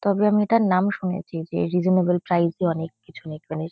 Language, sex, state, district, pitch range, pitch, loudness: Bengali, female, West Bengal, Kolkata, 160-195 Hz, 180 Hz, -22 LUFS